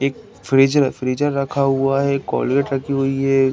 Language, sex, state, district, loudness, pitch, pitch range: Hindi, male, Uttar Pradesh, Deoria, -18 LUFS, 135 Hz, 135-140 Hz